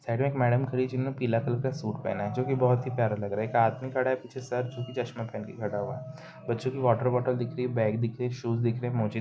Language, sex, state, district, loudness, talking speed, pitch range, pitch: Hindi, male, Bihar, Muzaffarpur, -29 LUFS, 315 wpm, 115-130 Hz, 125 Hz